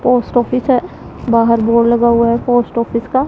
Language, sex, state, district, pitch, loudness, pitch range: Hindi, female, Punjab, Pathankot, 235 Hz, -13 LUFS, 235-245 Hz